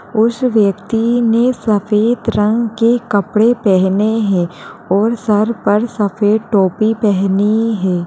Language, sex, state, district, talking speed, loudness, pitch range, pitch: Hindi, female, Uttar Pradesh, Jalaun, 125 wpm, -14 LUFS, 205-230 Hz, 215 Hz